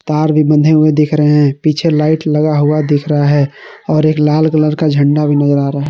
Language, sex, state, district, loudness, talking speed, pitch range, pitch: Hindi, male, Jharkhand, Garhwa, -12 LUFS, 255 wpm, 145-155 Hz, 150 Hz